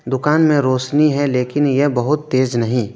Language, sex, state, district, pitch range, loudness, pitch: Hindi, male, West Bengal, Alipurduar, 125-150 Hz, -16 LUFS, 135 Hz